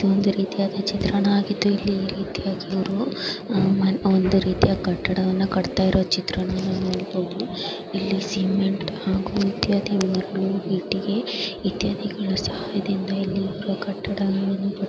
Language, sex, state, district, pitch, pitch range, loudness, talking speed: Kannada, female, Karnataka, Mysore, 195 Hz, 190-200 Hz, -23 LUFS, 105 wpm